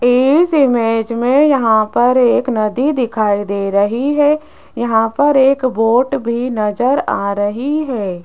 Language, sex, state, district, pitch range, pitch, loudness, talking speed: Hindi, female, Rajasthan, Jaipur, 220-275 Hz, 240 Hz, -14 LUFS, 145 wpm